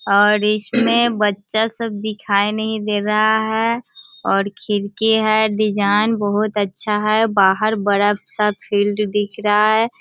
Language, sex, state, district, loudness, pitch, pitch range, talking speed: Hindi, female, Bihar, Sitamarhi, -17 LUFS, 210 Hz, 205-220 Hz, 140 wpm